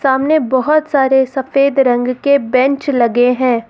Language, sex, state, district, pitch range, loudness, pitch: Hindi, female, Uttar Pradesh, Lucknow, 250-280 Hz, -13 LUFS, 265 Hz